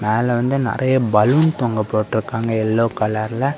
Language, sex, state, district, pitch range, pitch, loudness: Tamil, male, Tamil Nadu, Kanyakumari, 110-130 Hz, 115 Hz, -18 LUFS